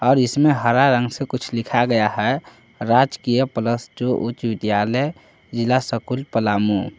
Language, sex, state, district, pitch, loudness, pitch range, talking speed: Hindi, male, Jharkhand, Palamu, 120 Hz, -20 LUFS, 115-130 Hz, 145 wpm